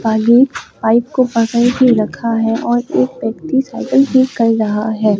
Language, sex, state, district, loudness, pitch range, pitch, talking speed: Hindi, male, Bihar, Katihar, -14 LUFS, 225-255 Hz, 235 Hz, 175 wpm